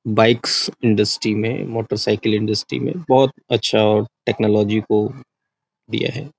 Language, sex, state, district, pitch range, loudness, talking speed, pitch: Hindi, male, Chhattisgarh, Raigarh, 105-130 Hz, -19 LUFS, 120 wpm, 110 Hz